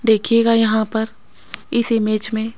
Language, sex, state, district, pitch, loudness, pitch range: Hindi, female, Rajasthan, Jaipur, 220 Hz, -17 LUFS, 220-230 Hz